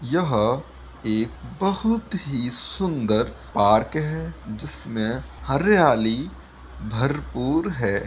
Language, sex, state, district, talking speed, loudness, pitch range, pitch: Hindi, male, Bihar, Saharsa, 80 wpm, -23 LUFS, 110-165 Hz, 125 Hz